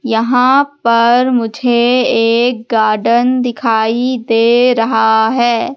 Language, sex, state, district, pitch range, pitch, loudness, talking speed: Hindi, female, Madhya Pradesh, Katni, 225-250 Hz, 235 Hz, -12 LUFS, 95 wpm